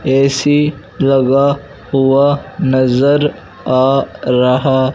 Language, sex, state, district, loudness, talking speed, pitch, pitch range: Hindi, male, Punjab, Fazilka, -13 LUFS, 75 wpm, 135 Hz, 130-140 Hz